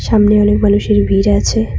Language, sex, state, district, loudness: Bengali, female, West Bengal, Cooch Behar, -12 LUFS